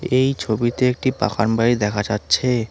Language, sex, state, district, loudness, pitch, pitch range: Bengali, male, West Bengal, Alipurduar, -19 LUFS, 120 Hz, 105-125 Hz